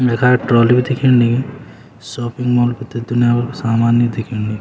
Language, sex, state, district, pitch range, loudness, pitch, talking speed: Garhwali, male, Uttarakhand, Uttarkashi, 120-125 Hz, -15 LUFS, 120 Hz, 210 wpm